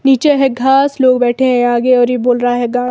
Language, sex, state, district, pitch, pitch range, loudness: Hindi, female, Himachal Pradesh, Shimla, 250 Hz, 245-265 Hz, -12 LUFS